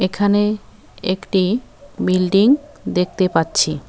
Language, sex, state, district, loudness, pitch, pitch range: Bengali, female, West Bengal, Cooch Behar, -18 LUFS, 190 Hz, 180-210 Hz